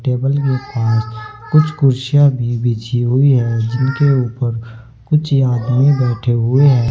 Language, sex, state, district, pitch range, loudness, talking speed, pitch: Hindi, male, Uttar Pradesh, Saharanpur, 120-135 Hz, -15 LUFS, 140 wpm, 125 Hz